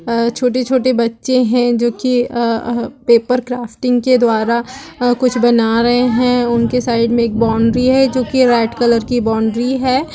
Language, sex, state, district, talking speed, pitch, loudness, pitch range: Hindi, female, Bihar, Lakhisarai, 175 wpm, 240 Hz, -14 LUFS, 235-250 Hz